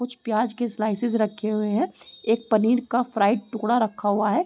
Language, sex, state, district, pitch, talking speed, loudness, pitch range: Hindi, female, Uttar Pradesh, Deoria, 225 Hz, 200 wpm, -24 LUFS, 215-240 Hz